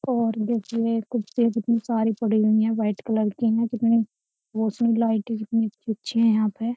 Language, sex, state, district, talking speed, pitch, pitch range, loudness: Hindi, female, Uttar Pradesh, Jyotiba Phule Nagar, 175 wpm, 225 Hz, 220-230 Hz, -23 LUFS